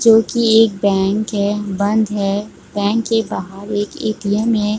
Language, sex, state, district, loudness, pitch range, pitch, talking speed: Hindi, female, Chhattisgarh, Bilaspur, -17 LUFS, 200-220 Hz, 210 Hz, 165 wpm